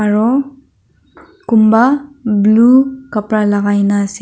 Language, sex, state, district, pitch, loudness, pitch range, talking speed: Nagamese, female, Nagaland, Dimapur, 220 Hz, -12 LUFS, 210-265 Hz, 85 wpm